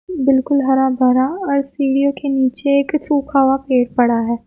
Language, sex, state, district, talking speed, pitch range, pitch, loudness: Hindi, female, Uttar Pradesh, Muzaffarnagar, 175 wpm, 260-280 Hz, 270 Hz, -16 LUFS